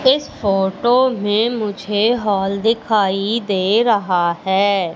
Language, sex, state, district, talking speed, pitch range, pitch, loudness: Hindi, female, Madhya Pradesh, Katni, 110 wpm, 195-230 Hz, 205 Hz, -17 LUFS